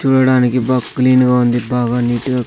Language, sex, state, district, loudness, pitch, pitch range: Telugu, male, Andhra Pradesh, Sri Satya Sai, -14 LUFS, 125 Hz, 120-130 Hz